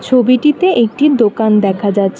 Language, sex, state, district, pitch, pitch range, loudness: Bengali, female, West Bengal, Alipurduar, 235 Hz, 205-275 Hz, -12 LUFS